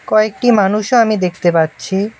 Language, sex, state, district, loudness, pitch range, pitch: Bengali, male, West Bengal, Alipurduar, -14 LUFS, 180-215 Hz, 210 Hz